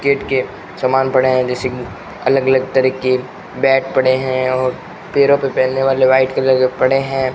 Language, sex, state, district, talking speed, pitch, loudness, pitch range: Hindi, male, Rajasthan, Bikaner, 190 wpm, 130 Hz, -15 LUFS, 130-135 Hz